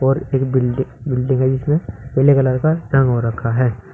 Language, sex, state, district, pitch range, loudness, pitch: Hindi, male, Uttar Pradesh, Saharanpur, 125-135 Hz, -17 LUFS, 130 Hz